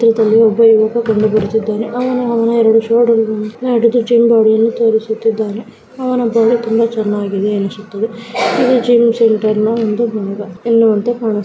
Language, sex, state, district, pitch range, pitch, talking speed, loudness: Kannada, female, Karnataka, Dakshina Kannada, 215-235 Hz, 225 Hz, 125 wpm, -13 LUFS